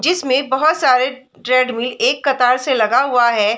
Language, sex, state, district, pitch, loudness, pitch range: Hindi, female, Chhattisgarh, Bilaspur, 260 Hz, -15 LUFS, 245-275 Hz